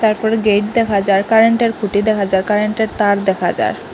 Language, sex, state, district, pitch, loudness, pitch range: Bengali, female, Assam, Hailakandi, 210 Hz, -15 LUFS, 200-220 Hz